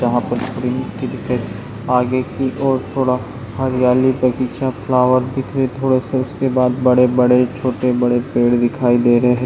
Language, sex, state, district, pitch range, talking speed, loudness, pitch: Hindi, male, Chhattisgarh, Raigarh, 125-130 Hz, 160 wpm, -17 LUFS, 125 Hz